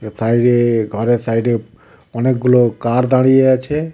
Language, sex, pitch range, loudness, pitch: Bengali, male, 115-130 Hz, -15 LUFS, 120 Hz